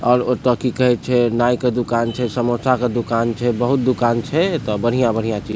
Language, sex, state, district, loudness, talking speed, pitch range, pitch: Maithili, male, Bihar, Supaul, -18 LUFS, 215 wpm, 115-125 Hz, 120 Hz